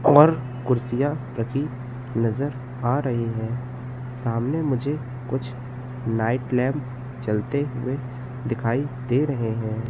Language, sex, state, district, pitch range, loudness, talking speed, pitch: Hindi, male, Madhya Pradesh, Katni, 120-130 Hz, -25 LUFS, 110 wpm, 125 Hz